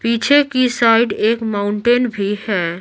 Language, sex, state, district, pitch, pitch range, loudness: Hindi, female, Bihar, Patna, 225 Hz, 205-240 Hz, -16 LUFS